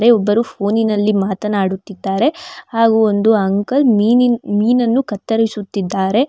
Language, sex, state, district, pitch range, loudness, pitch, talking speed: Kannada, female, Karnataka, Bangalore, 200-235 Hz, -15 LUFS, 215 Hz, 85 wpm